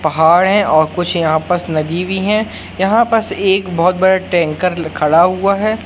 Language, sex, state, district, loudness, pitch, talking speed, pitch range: Hindi, male, Madhya Pradesh, Katni, -14 LUFS, 180 Hz, 185 wpm, 165-195 Hz